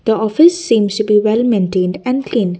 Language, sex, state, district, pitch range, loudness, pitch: English, female, Assam, Kamrup Metropolitan, 205-245 Hz, -14 LUFS, 220 Hz